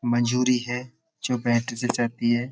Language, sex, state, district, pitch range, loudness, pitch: Hindi, male, Uttar Pradesh, Budaun, 120-125 Hz, -25 LUFS, 120 Hz